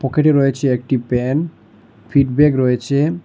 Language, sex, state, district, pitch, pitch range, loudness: Bengali, male, Assam, Hailakandi, 135 Hz, 125-150 Hz, -16 LUFS